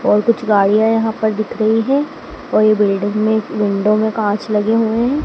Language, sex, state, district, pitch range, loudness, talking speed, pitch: Hindi, male, Madhya Pradesh, Dhar, 210-225 Hz, -15 LUFS, 205 wpm, 220 Hz